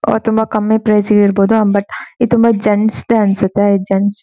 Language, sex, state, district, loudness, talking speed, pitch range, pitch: Kannada, female, Karnataka, Shimoga, -13 LUFS, 200 wpm, 200-220 Hz, 210 Hz